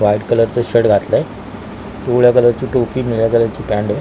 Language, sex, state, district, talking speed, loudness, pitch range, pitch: Marathi, male, Maharashtra, Mumbai Suburban, 195 wpm, -15 LUFS, 105-125 Hz, 115 Hz